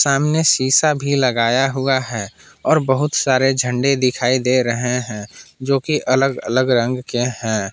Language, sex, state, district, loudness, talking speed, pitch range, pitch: Hindi, male, Jharkhand, Palamu, -17 LUFS, 165 wpm, 125-135 Hz, 130 Hz